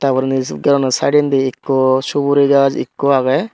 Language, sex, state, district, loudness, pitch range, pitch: Chakma, male, Tripura, Dhalai, -15 LUFS, 130-140 Hz, 135 Hz